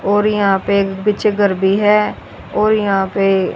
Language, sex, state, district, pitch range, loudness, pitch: Hindi, female, Haryana, Rohtak, 195-210 Hz, -15 LUFS, 200 Hz